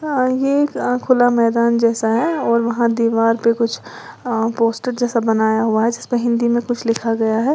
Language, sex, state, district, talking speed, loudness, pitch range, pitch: Hindi, female, Uttar Pradesh, Lalitpur, 185 wpm, -17 LUFS, 230-245 Hz, 235 Hz